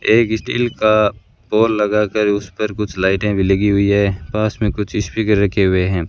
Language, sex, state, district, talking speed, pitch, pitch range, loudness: Hindi, male, Rajasthan, Bikaner, 195 wpm, 105 Hz, 100-110 Hz, -17 LUFS